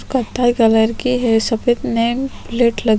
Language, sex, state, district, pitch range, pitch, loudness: Hindi, female, Chhattisgarh, Sukma, 225-250 Hz, 235 Hz, -16 LUFS